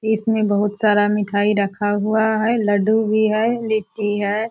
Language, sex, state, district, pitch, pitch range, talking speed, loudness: Hindi, female, Bihar, Purnia, 215 Hz, 205-220 Hz, 160 wpm, -18 LUFS